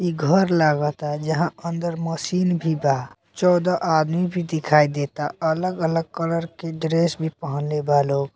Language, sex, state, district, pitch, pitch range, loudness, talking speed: Bhojpuri, male, Bihar, Muzaffarpur, 160 Hz, 150-170 Hz, -22 LUFS, 150 wpm